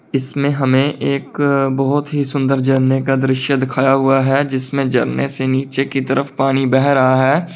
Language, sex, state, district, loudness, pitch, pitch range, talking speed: Hindi, male, Uttar Pradesh, Lalitpur, -16 LUFS, 135 Hz, 135-140 Hz, 175 wpm